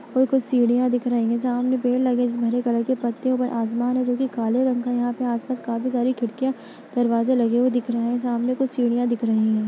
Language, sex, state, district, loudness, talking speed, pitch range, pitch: Hindi, female, Uttar Pradesh, Etah, -22 LUFS, 250 wpm, 235-255 Hz, 245 Hz